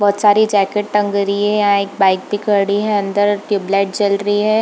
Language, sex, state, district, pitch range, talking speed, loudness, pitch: Hindi, female, Bihar, Purnia, 200-205 Hz, 220 wpm, -15 LUFS, 205 Hz